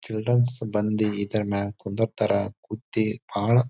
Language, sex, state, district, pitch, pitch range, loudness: Kannada, male, Karnataka, Bijapur, 110 Hz, 100-115 Hz, -25 LUFS